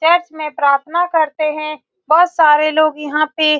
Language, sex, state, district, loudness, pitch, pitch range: Hindi, female, Bihar, Saran, -15 LUFS, 310 Hz, 300-330 Hz